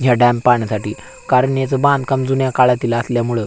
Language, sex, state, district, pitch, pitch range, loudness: Marathi, male, Maharashtra, Aurangabad, 125 Hz, 120-135 Hz, -16 LUFS